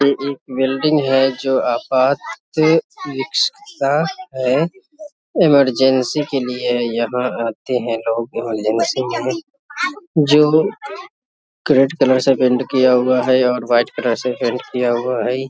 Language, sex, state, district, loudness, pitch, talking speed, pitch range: Hindi, male, Bihar, Samastipur, -17 LUFS, 130 Hz, 135 wpm, 125-150 Hz